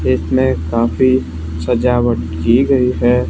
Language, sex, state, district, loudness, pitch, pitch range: Hindi, male, Haryana, Charkhi Dadri, -15 LUFS, 115 Hz, 80-125 Hz